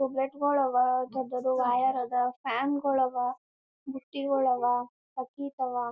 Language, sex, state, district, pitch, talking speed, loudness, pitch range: Kannada, male, Karnataka, Gulbarga, 260 Hz, 150 wpm, -29 LUFS, 250-270 Hz